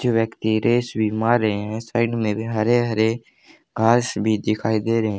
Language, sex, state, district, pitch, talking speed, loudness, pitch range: Hindi, male, Haryana, Charkhi Dadri, 110 Hz, 210 wpm, -21 LUFS, 110-115 Hz